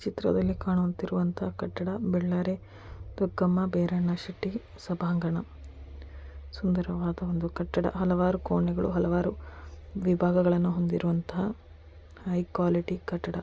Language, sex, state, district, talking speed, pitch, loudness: Kannada, female, Karnataka, Dakshina Kannada, 80 wpm, 175 Hz, -29 LUFS